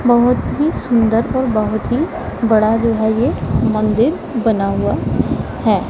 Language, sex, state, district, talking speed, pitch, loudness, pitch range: Hindi, female, Punjab, Pathankot, 140 wpm, 230 Hz, -16 LUFS, 220-245 Hz